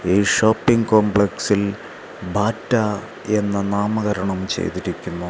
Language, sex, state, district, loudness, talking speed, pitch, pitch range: Malayalam, male, Kerala, Kasaragod, -20 LUFS, 80 wpm, 105 Hz, 100-110 Hz